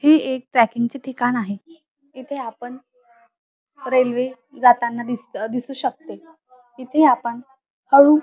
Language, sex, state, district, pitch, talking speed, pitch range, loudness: Marathi, female, Maharashtra, Dhule, 255 Hz, 125 wpm, 240-275 Hz, -20 LUFS